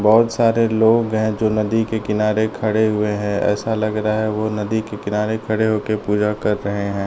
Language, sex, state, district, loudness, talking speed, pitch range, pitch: Hindi, male, Uttar Pradesh, Deoria, -19 LUFS, 210 wpm, 105-110 Hz, 110 Hz